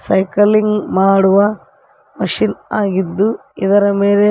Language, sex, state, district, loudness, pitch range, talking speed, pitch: Kannada, female, Karnataka, Koppal, -14 LUFS, 195-210 Hz, 85 wpm, 200 Hz